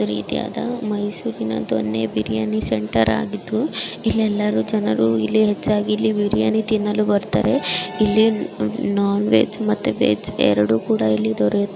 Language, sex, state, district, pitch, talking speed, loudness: Kannada, male, Karnataka, Mysore, 110 Hz, 110 wpm, -20 LUFS